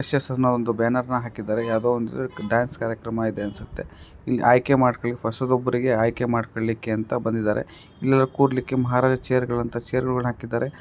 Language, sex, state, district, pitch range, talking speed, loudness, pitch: Kannada, male, Karnataka, Raichur, 115-130 Hz, 130 wpm, -23 LUFS, 120 Hz